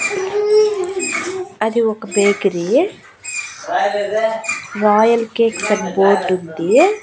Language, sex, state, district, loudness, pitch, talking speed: Telugu, female, Andhra Pradesh, Annamaya, -17 LUFS, 220 Hz, 70 wpm